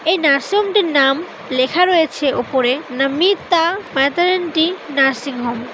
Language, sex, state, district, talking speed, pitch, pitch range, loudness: Bengali, female, West Bengal, North 24 Parganas, 125 wpm, 295 Hz, 270-350 Hz, -16 LUFS